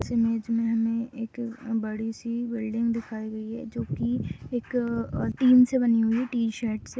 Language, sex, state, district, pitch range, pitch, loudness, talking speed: Hindi, female, Uttar Pradesh, Jyotiba Phule Nagar, 225-235 Hz, 230 Hz, -27 LUFS, 205 wpm